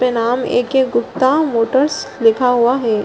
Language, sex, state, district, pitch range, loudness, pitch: Hindi, female, Bihar, Gaya, 230-265 Hz, -15 LUFS, 250 Hz